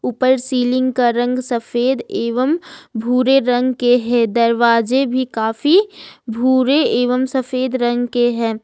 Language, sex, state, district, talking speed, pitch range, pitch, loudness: Hindi, female, Jharkhand, Ranchi, 130 wpm, 235-255 Hz, 245 Hz, -16 LUFS